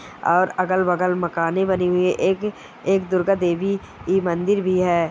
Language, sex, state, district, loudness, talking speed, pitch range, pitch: Hindi, female, Bihar, East Champaran, -21 LUFS, 165 wpm, 175-190 Hz, 185 Hz